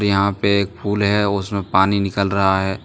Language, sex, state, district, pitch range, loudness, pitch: Hindi, male, Jharkhand, Deoghar, 95-100 Hz, -18 LUFS, 100 Hz